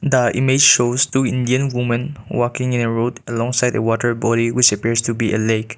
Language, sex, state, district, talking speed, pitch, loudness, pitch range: English, male, Nagaland, Kohima, 220 wpm, 120 Hz, -17 LUFS, 115-125 Hz